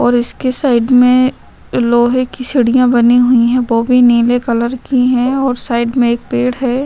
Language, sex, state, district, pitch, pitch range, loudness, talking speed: Hindi, female, Maharashtra, Aurangabad, 245 Hz, 240-255 Hz, -12 LUFS, 190 wpm